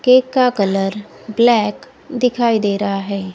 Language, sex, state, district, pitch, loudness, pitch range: Hindi, female, Odisha, Khordha, 220 Hz, -16 LUFS, 200-250 Hz